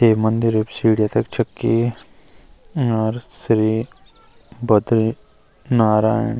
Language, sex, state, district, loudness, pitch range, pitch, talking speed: Garhwali, male, Uttarakhand, Uttarkashi, -18 LUFS, 110-115 Hz, 110 Hz, 95 wpm